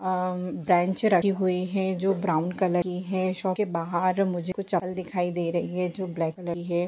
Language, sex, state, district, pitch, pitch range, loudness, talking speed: Hindi, female, Jharkhand, Jamtara, 180 Hz, 175-190 Hz, -26 LUFS, 220 wpm